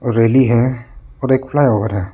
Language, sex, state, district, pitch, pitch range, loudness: Hindi, male, Arunachal Pradesh, Lower Dibang Valley, 120 Hz, 115-130 Hz, -15 LUFS